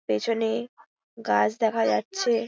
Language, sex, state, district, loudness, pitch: Bengali, female, West Bengal, Paschim Medinipur, -25 LUFS, 225 Hz